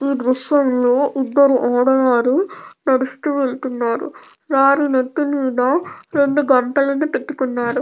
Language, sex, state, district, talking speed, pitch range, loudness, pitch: Telugu, female, Andhra Pradesh, Krishna, 100 wpm, 255-285 Hz, -17 LUFS, 265 Hz